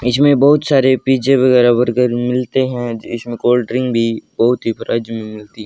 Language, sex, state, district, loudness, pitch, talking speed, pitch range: Hindi, male, Haryana, Rohtak, -15 LUFS, 125 Hz, 180 wpm, 115-130 Hz